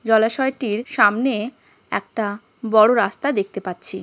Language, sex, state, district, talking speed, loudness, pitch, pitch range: Bengali, female, West Bengal, Jhargram, 105 wpm, -20 LUFS, 220 Hz, 205-240 Hz